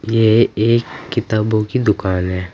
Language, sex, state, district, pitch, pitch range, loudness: Hindi, male, Uttar Pradesh, Saharanpur, 110 Hz, 105-115 Hz, -16 LUFS